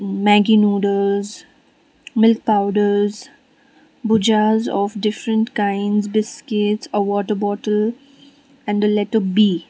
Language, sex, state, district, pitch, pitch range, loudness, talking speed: English, female, Sikkim, Gangtok, 210 Hz, 205-230 Hz, -18 LUFS, 100 wpm